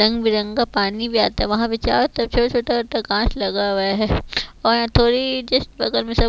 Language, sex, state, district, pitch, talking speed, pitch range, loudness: Hindi, female, Chhattisgarh, Raipur, 225 Hz, 200 wpm, 205-240 Hz, -19 LUFS